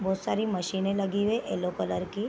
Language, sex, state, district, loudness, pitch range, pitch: Hindi, female, Bihar, Gopalganj, -29 LUFS, 190-210 Hz, 195 Hz